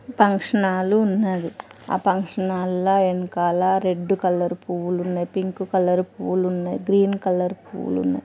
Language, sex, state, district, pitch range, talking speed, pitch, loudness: Telugu, female, Andhra Pradesh, Srikakulam, 180-195 Hz, 115 wpm, 185 Hz, -22 LUFS